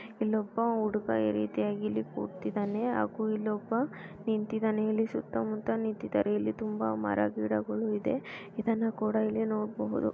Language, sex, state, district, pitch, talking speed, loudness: Kannada, female, Karnataka, Raichur, 210 Hz, 130 wpm, -32 LUFS